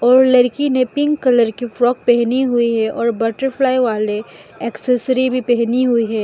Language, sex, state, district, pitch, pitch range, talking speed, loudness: Hindi, female, Mizoram, Aizawl, 245 Hz, 235-255 Hz, 175 wpm, -16 LUFS